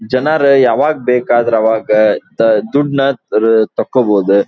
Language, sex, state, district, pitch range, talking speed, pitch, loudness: Kannada, male, Karnataka, Dharwad, 110-135 Hz, 105 wpm, 115 Hz, -12 LUFS